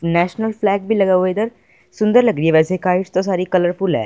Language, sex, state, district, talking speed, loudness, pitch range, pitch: Hindi, male, Punjab, Fazilka, 235 wpm, -17 LUFS, 180-215 Hz, 185 Hz